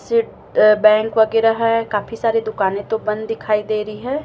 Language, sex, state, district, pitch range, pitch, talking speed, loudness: Hindi, female, Chhattisgarh, Raipur, 215-225 Hz, 220 Hz, 185 wpm, -17 LUFS